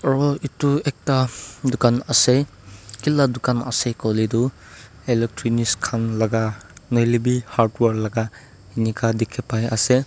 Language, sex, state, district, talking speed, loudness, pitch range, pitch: Nagamese, male, Nagaland, Dimapur, 135 wpm, -21 LUFS, 110-130 Hz, 115 Hz